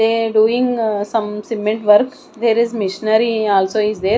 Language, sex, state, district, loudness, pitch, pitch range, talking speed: English, female, Odisha, Nuapada, -16 LUFS, 220 Hz, 210-230 Hz, 170 wpm